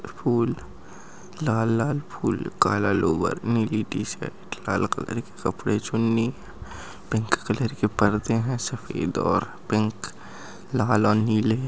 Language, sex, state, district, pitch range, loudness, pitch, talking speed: Angika, male, Bihar, Madhepura, 110-125 Hz, -25 LUFS, 115 Hz, 125 wpm